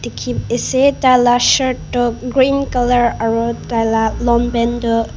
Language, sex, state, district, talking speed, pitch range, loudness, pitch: Nagamese, female, Nagaland, Kohima, 140 wpm, 230-250 Hz, -15 LUFS, 240 Hz